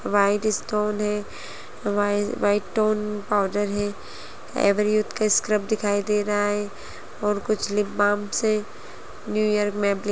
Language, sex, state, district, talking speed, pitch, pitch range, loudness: Hindi, female, Chhattisgarh, Sarguja, 130 wpm, 205 Hz, 205-210 Hz, -24 LUFS